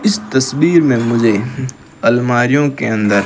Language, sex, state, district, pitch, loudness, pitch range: Hindi, male, Rajasthan, Bikaner, 125 Hz, -14 LUFS, 115-140 Hz